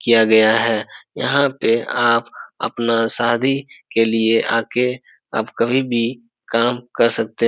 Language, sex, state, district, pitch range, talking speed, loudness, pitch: Hindi, male, Bihar, Supaul, 115-120 Hz, 145 wpm, -18 LUFS, 115 Hz